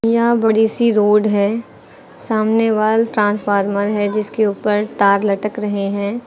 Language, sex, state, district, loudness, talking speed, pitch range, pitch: Hindi, female, Uttar Pradesh, Lucknow, -16 LUFS, 145 wpm, 205-225 Hz, 210 Hz